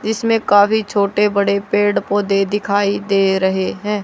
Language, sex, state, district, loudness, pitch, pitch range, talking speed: Hindi, female, Haryana, Charkhi Dadri, -16 LUFS, 205 Hz, 200-205 Hz, 150 wpm